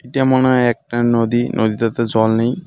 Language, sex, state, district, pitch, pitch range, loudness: Bengali, male, West Bengal, Alipurduar, 120 Hz, 115-125 Hz, -16 LUFS